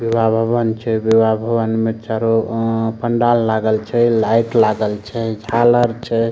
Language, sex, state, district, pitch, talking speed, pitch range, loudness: Maithili, male, Bihar, Samastipur, 115 Hz, 150 wpm, 110-115 Hz, -16 LUFS